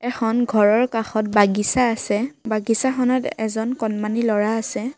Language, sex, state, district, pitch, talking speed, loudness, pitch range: Assamese, female, Assam, Kamrup Metropolitan, 225 Hz, 120 wpm, -20 LUFS, 215-245 Hz